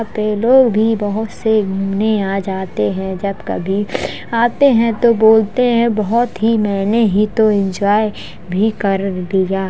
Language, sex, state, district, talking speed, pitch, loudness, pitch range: Hindi, female, Uttar Pradesh, Jalaun, 165 wpm, 215 Hz, -15 LUFS, 195-225 Hz